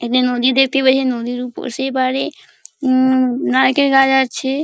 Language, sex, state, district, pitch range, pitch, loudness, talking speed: Bengali, female, West Bengal, Paschim Medinipur, 250-270 Hz, 260 Hz, -16 LUFS, 155 wpm